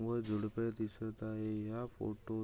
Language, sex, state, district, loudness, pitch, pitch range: Marathi, male, Maharashtra, Aurangabad, -40 LUFS, 110 Hz, 110-115 Hz